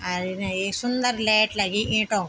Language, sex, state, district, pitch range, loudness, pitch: Garhwali, female, Uttarakhand, Tehri Garhwal, 190-215 Hz, -23 LUFS, 210 Hz